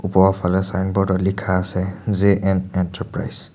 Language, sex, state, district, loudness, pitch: Assamese, male, Assam, Sonitpur, -20 LUFS, 95 Hz